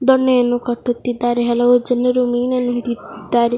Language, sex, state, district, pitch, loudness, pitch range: Kannada, female, Karnataka, Belgaum, 245 Hz, -17 LUFS, 240-250 Hz